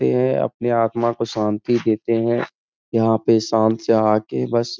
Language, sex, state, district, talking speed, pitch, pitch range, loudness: Hindi, male, Uttar Pradesh, Etah, 175 wpm, 115 Hz, 110-115 Hz, -19 LUFS